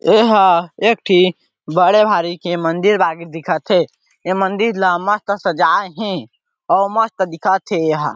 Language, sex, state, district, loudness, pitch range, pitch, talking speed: Chhattisgarhi, male, Chhattisgarh, Sarguja, -16 LUFS, 175-210 Hz, 190 Hz, 155 wpm